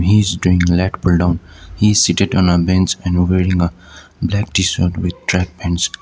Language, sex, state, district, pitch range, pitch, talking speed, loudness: English, male, Sikkim, Gangtok, 85-95 Hz, 90 Hz, 180 wpm, -16 LUFS